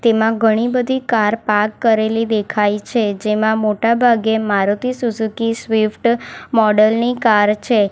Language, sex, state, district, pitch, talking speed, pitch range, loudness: Gujarati, female, Gujarat, Valsad, 220 Hz, 130 wpm, 215-230 Hz, -16 LUFS